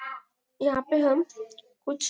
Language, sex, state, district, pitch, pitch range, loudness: Hindi, female, Chhattisgarh, Bastar, 265 Hz, 250-285 Hz, -27 LUFS